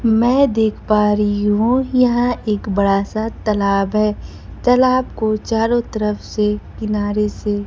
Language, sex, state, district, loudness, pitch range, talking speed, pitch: Hindi, female, Bihar, Kaimur, -17 LUFS, 210-235 Hz, 140 wpm, 215 Hz